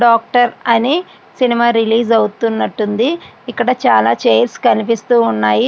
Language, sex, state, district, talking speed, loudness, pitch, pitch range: Telugu, female, Andhra Pradesh, Srikakulam, 115 wpm, -14 LUFS, 235 Hz, 225-245 Hz